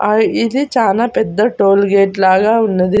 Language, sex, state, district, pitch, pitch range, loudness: Telugu, female, Andhra Pradesh, Annamaya, 210 Hz, 195-230 Hz, -13 LUFS